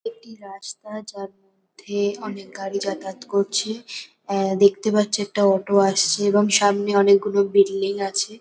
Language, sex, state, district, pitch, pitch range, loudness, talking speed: Bengali, female, West Bengal, North 24 Parganas, 200 Hz, 195-210 Hz, -20 LUFS, 135 wpm